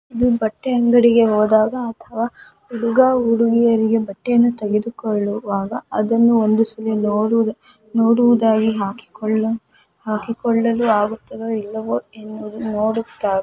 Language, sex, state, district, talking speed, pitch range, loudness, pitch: Kannada, female, Karnataka, Mysore, 90 wpm, 215-235 Hz, -18 LUFS, 225 Hz